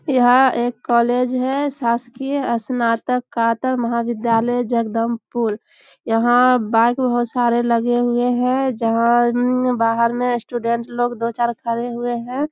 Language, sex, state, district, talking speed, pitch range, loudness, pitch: Hindi, female, Bihar, Samastipur, 130 wpm, 235-250 Hz, -18 LUFS, 240 Hz